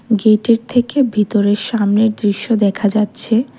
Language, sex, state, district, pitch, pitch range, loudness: Bengali, female, Tripura, West Tripura, 220 Hz, 205-230 Hz, -15 LUFS